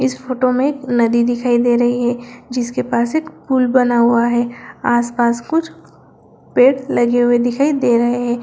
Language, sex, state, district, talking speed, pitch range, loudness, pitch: Hindi, female, Bihar, Jahanabad, 170 wpm, 240-255 Hz, -16 LUFS, 245 Hz